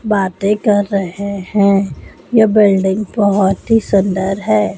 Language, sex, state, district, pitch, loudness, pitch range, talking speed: Hindi, male, Madhya Pradesh, Dhar, 200 Hz, -14 LUFS, 195-210 Hz, 125 wpm